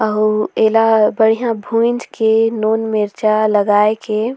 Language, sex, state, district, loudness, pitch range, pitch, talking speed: Surgujia, female, Chhattisgarh, Sarguja, -15 LUFS, 215-225 Hz, 220 Hz, 125 wpm